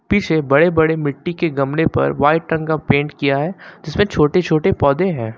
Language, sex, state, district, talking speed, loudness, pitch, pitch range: Hindi, male, Uttar Pradesh, Lucknow, 200 wpm, -17 LUFS, 160 Hz, 145-175 Hz